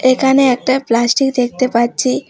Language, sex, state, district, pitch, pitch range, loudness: Bengali, female, West Bengal, Alipurduar, 255 Hz, 245-265 Hz, -14 LUFS